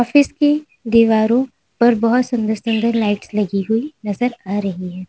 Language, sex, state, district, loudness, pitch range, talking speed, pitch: Hindi, female, Uttar Pradesh, Lalitpur, -17 LUFS, 210-245 Hz, 140 wpm, 230 Hz